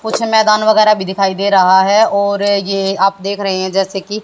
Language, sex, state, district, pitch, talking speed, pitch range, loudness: Hindi, female, Haryana, Jhajjar, 200 Hz, 225 wpm, 195-215 Hz, -13 LUFS